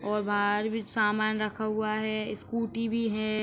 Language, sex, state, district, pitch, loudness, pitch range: Hindi, female, Uttar Pradesh, Etah, 215 Hz, -29 LUFS, 210-220 Hz